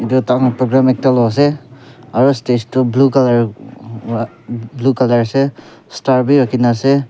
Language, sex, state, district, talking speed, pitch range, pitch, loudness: Nagamese, male, Nagaland, Kohima, 145 wpm, 120-135 Hz, 130 Hz, -14 LUFS